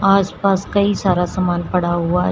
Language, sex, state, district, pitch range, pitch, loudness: Hindi, female, Uttar Pradesh, Shamli, 175-195 Hz, 185 Hz, -17 LUFS